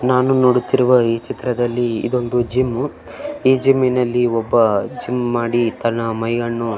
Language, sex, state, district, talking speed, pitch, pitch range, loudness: Kannada, male, Karnataka, Belgaum, 125 wpm, 120 Hz, 115-125 Hz, -17 LUFS